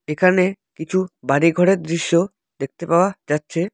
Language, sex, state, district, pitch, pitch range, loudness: Bengali, male, West Bengal, Alipurduar, 170 Hz, 160-185 Hz, -19 LUFS